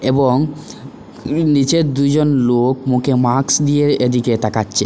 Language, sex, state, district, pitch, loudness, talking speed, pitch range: Bengali, male, Assam, Hailakandi, 135 Hz, -15 LUFS, 110 wpm, 125-145 Hz